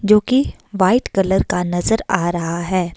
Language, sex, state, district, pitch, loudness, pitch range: Hindi, female, Himachal Pradesh, Shimla, 190 Hz, -18 LUFS, 175-210 Hz